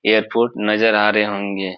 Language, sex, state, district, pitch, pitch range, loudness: Hindi, male, Bihar, Supaul, 105 Hz, 100-110 Hz, -17 LUFS